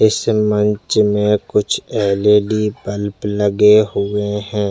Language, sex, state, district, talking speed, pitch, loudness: Hindi, male, Chhattisgarh, Jashpur, 115 wpm, 105 Hz, -16 LUFS